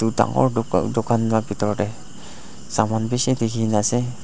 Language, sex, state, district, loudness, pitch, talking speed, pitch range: Nagamese, male, Nagaland, Dimapur, -21 LUFS, 115 Hz, 155 wpm, 110-120 Hz